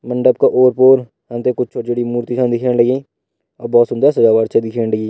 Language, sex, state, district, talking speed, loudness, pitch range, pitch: Hindi, male, Uttarakhand, Uttarkashi, 200 wpm, -14 LUFS, 120-125 Hz, 120 Hz